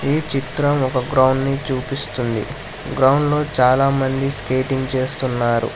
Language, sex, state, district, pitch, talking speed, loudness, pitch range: Telugu, male, Telangana, Hyderabad, 135 Hz, 125 wpm, -19 LUFS, 130-135 Hz